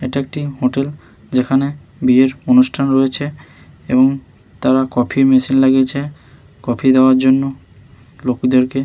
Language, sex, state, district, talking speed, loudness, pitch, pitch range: Bengali, male, West Bengal, Malda, 110 wpm, -15 LUFS, 130 Hz, 125-135 Hz